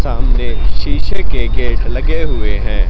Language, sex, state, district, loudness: Hindi, male, Haryana, Rohtak, -19 LUFS